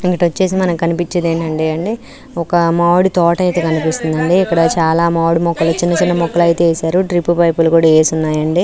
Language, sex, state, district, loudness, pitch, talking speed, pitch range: Telugu, female, Andhra Pradesh, Anantapur, -14 LUFS, 170 Hz, 105 wpm, 165-175 Hz